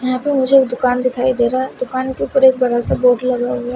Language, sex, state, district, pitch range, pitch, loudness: Hindi, female, Himachal Pradesh, Shimla, 250-260 Hz, 255 Hz, -16 LUFS